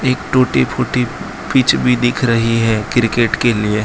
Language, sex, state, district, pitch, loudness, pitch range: Hindi, male, Gujarat, Valsad, 120 Hz, -15 LUFS, 115-125 Hz